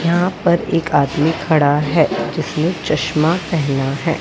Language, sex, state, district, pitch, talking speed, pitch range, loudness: Hindi, female, Maharashtra, Gondia, 160 Hz, 145 wpm, 150-170 Hz, -17 LUFS